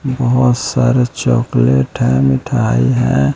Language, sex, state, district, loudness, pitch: Hindi, male, Bihar, West Champaran, -14 LUFS, 110 Hz